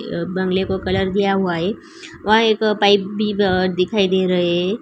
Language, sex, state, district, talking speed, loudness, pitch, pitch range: Hindi, female, Uttarakhand, Uttarkashi, 185 wpm, -18 LUFS, 190 Hz, 185-205 Hz